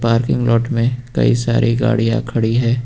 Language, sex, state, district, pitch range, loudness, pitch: Hindi, male, Uttar Pradesh, Lucknow, 115-120 Hz, -16 LUFS, 115 Hz